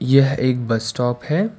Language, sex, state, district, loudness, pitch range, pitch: Hindi, male, Karnataka, Bangalore, -19 LUFS, 120-145 Hz, 130 Hz